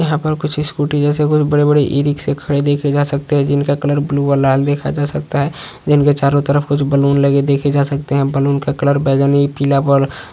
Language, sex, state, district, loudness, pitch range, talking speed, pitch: Hindi, male, Uttar Pradesh, Hamirpur, -15 LUFS, 140-145 Hz, 240 wpm, 145 Hz